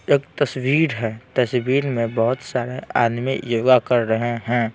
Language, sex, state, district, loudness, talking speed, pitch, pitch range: Hindi, male, Bihar, Patna, -20 LUFS, 150 wpm, 125 Hz, 115-130 Hz